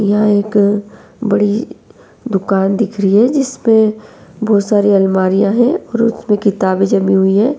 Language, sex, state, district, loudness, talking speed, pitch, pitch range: Hindi, female, Uttar Pradesh, Varanasi, -13 LUFS, 140 wpm, 205 Hz, 195-220 Hz